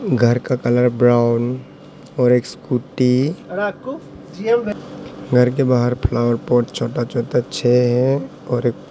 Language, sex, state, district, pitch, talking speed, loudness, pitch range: Hindi, male, Arunachal Pradesh, Papum Pare, 125 Hz, 130 wpm, -18 LUFS, 120-130 Hz